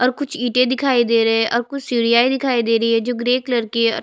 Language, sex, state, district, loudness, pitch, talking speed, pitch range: Hindi, female, Chhattisgarh, Bastar, -17 LUFS, 240 Hz, 300 wpm, 230-255 Hz